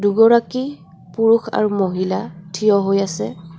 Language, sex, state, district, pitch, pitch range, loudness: Assamese, female, Assam, Kamrup Metropolitan, 200 Hz, 175-225 Hz, -18 LUFS